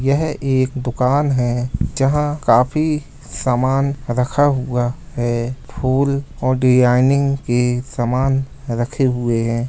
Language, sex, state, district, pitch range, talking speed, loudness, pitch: Hindi, male, Bihar, Lakhisarai, 125-140 Hz, 125 wpm, -18 LUFS, 130 Hz